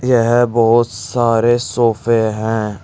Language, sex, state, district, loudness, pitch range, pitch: Hindi, male, Uttar Pradesh, Saharanpur, -15 LUFS, 110-120 Hz, 115 Hz